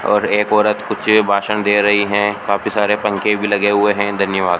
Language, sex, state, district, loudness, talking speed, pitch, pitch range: Hindi, male, Rajasthan, Bikaner, -15 LUFS, 210 wpm, 105 Hz, 100-105 Hz